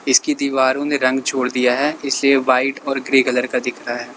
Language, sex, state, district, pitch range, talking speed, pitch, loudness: Hindi, male, Uttar Pradesh, Lalitpur, 125-140 Hz, 245 wpm, 130 Hz, -17 LUFS